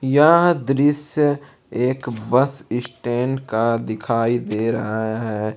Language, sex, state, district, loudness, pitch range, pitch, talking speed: Hindi, male, Jharkhand, Palamu, -20 LUFS, 110-140 Hz, 120 Hz, 110 wpm